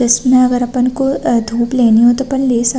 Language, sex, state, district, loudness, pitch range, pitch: Hindi, female, Chhattisgarh, Rajnandgaon, -13 LUFS, 235-255 Hz, 250 Hz